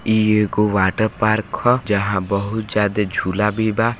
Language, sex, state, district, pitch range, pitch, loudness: Hindi, male, Bihar, Gopalganj, 100-110 Hz, 105 Hz, -18 LUFS